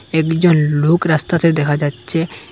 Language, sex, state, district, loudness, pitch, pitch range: Bengali, male, Assam, Hailakandi, -15 LUFS, 155 Hz, 145-165 Hz